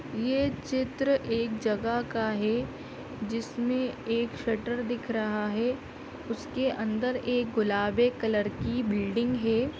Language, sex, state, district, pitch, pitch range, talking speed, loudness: Hindi, female, Bihar, Madhepura, 235 Hz, 220-250 Hz, 120 wpm, -29 LUFS